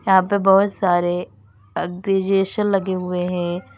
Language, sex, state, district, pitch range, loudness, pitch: Hindi, female, Uttar Pradesh, Lalitpur, 175-195 Hz, -19 LUFS, 185 Hz